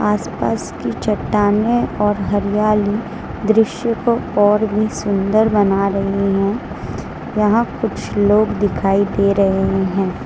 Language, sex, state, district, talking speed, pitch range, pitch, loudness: Hindi, female, Gujarat, Valsad, 115 wpm, 195-215 Hz, 205 Hz, -17 LUFS